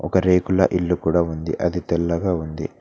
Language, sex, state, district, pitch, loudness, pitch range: Telugu, male, Telangana, Mahabubabad, 85 Hz, -21 LUFS, 85-90 Hz